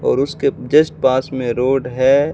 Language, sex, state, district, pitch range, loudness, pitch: Hindi, male, Rajasthan, Bikaner, 130-140 Hz, -16 LUFS, 135 Hz